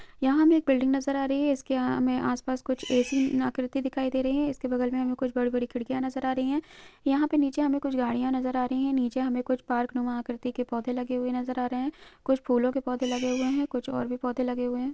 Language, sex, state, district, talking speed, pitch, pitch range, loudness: Hindi, female, Chhattisgarh, Sukma, 270 wpm, 255 Hz, 250-270 Hz, -28 LUFS